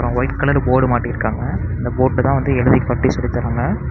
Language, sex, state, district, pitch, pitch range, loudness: Tamil, male, Tamil Nadu, Namakkal, 125 Hz, 120-130 Hz, -17 LUFS